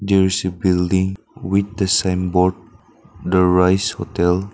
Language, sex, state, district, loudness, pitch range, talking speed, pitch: English, male, Nagaland, Dimapur, -18 LUFS, 90-95 Hz, 145 wpm, 95 Hz